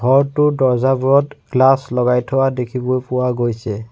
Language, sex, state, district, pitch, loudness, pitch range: Assamese, male, Assam, Sonitpur, 130 Hz, -16 LUFS, 125-135 Hz